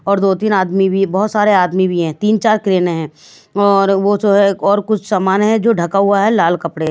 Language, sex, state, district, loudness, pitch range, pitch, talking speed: Hindi, female, Bihar, West Champaran, -14 LUFS, 185-205 Hz, 195 Hz, 245 wpm